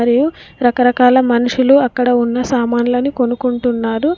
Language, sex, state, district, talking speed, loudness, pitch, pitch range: Telugu, female, Telangana, Komaram Bheem, 100 wpm, -14 LUFS, 245 Hz, 240-255 Hz